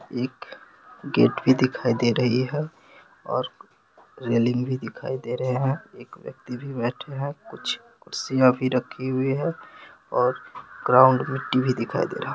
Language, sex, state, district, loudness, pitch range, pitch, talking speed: Hindi, male, Bihar, Supaul, -24 LUFS, 125-135 Hz, 130 Hz, 170 wpm